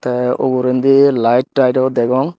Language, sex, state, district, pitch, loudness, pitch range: Chakma, male, Tripura, Dhalai, 130 Hz, -14 LUFS, 125-135 Hz